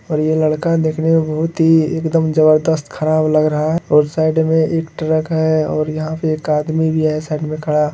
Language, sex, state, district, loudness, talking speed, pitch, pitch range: Hindi, male, Bihar, Lakhisarai, -16 LUFS, 210 wpm, 155 Hz, 155-160 Hz